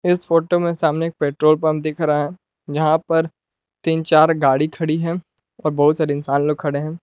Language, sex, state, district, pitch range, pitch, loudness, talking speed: Hindi, male, Jharkhand, Palamu, 150-165 Hz, 155 Hz, -19 LUFS, 205 wpm